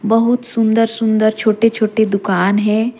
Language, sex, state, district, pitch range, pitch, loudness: Surgujia, female, Chhattisgarh, Sarguja, 215-230 Hz, 220 Hz, -15 LUFS